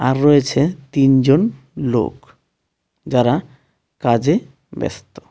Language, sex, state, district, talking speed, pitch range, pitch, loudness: Bengali, male, West Bengal, Darjeeling, 80 wpm, 130-145 Hz, 135 Hz, -17 LUFS